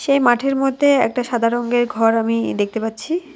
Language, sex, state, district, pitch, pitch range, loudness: Bengali, female, West Bengal, Alipurduar, 240 Hz, 225-275 Hz, -18 LUFS